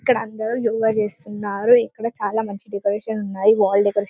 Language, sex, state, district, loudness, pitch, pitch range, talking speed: Telugu, female, Telangana, Karimnagar, -20 LUFS, 210 Hz, 200-225 Hz, 175 wpm